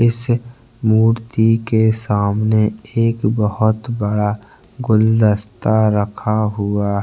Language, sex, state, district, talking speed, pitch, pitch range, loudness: Hindi, male, Chhattisgarh, Bastar, 95 wpm, 110 Hz, 105-115 Hz, -17 LUFS